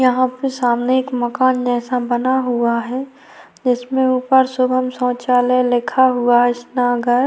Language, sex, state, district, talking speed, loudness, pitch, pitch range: Hindi, female, Chhattisgarh, Korba, 155 wpm, -17 LUFS, 250 Hz, 245-260 Hz